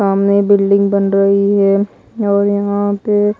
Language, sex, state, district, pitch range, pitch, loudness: Hindi, female, Odisha, Malkangiri, 200-205 Hz, 200 Hz, -13 LUFS